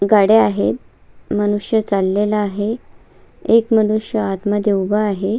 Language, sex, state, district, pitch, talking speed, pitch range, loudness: Marathi, female, Maharashtra, Solapur, 205 Hz, 110 wpm, 195-215 Hz, -17 LUFS